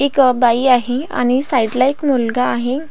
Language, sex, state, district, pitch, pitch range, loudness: Marathi, female, Maharashtra, Pune, 255 Hz, 245-270 Hz, -15 LUFS